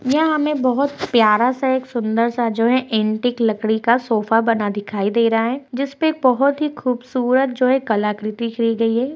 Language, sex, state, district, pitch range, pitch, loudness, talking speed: Hindi, female, Bihar, Purnia, 225-260 Hz, 240 Hz, -18 LUFS, 205 wpm